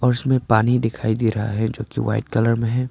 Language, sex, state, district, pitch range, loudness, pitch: Hindi, male, Arunachal Pradesh, Papum Pare, 110-125 Hz, -20 LUFS, 115 Hz